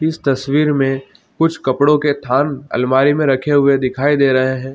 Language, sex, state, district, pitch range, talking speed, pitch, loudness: Hindi, male, Chhattisgarh, Bilaspur, 130-145 Hz, 190 wpm, 140 Hz, -15 LUFS